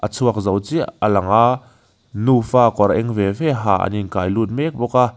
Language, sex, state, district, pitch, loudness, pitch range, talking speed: Mizo, male, Mizoram, Aizawl, 115 Hz, -18 LUFS, 100-125 Hz, 220 wpm